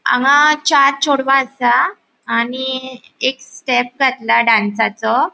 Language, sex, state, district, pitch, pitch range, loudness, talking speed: Konkani, female, Goa, North and South Goa, 260 Hz, 245-275 Hz, -15 LUFS, 115 wpm